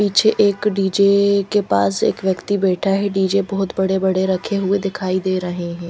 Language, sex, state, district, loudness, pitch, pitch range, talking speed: Hindi, female, Punjab, Fazilka, -18 LUFS, 195 Hz, 185-200 Hz, 195 wpm